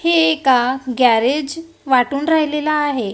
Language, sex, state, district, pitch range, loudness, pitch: Marathi, female, Maharashtra, Gondia, 255-315 Hz, -16 LUFS, 280 Hz